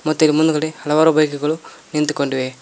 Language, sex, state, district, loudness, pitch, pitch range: Kannada, male, Karnataka, Koppal, -18 LUFS, 155 Hz, 145-155 Hz